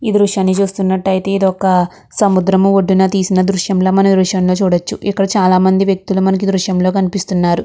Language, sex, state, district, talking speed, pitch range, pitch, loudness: Telugu, female, Andhra Pradesh, Guntur, 190 wpm, 185-195 Hz, 190 Hz, -13 LUFS